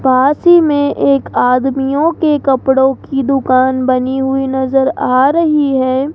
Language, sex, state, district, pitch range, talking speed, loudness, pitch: Hindi, male, Rajasthan, Jaipur, 260-285 Hz, 145 wpm, -12 LUFS, 270 Hz